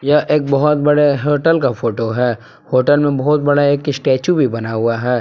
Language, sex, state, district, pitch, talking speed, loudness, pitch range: Hindi, male, Jharkhand, Palamu, 145 Hz, 205 wpm, -15 LUFS, 125-150 Hz